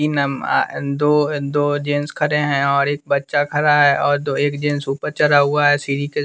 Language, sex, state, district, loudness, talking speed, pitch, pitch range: Hindi, male, Bihar, West Champaran, -18 LUFS, 240 wpm, 145 Hz, 140-145 Hz